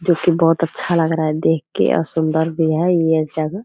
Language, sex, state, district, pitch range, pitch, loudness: Hindi, female, Bihar, Purnia, 160-170 Hz, 165 Hz, -17 LUFS